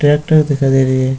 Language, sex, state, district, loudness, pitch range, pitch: Hindi, male, Bihar, Purnia, -13 LUFS, 130-150 Hz, 140 Hz